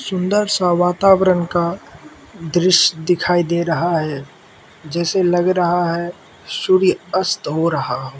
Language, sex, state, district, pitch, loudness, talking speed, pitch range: Hindi, male, Mizoram, Aizawl, 175 Hz, -17 LUFS, 130 wpm, 170-185 Hz